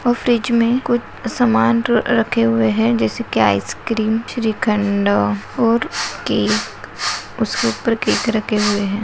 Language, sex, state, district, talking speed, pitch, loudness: Hindi, female, Chhattisgarh, Bilaspur, 135 wpm, 215 Hz, -17 LUFS